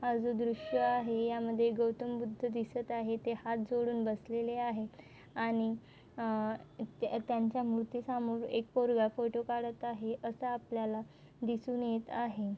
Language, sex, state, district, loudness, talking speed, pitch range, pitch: Marathi, female, Maharashtra, Nagpur, -36 LUFS, 140 wpm, 225-240 Hz, 230 Hz